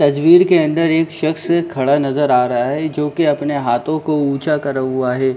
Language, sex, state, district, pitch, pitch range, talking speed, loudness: Hindi, male, Jharkhand, Sahebganj, 145 Hz, 135-155 Hz, 210 wpm, -16 LUFS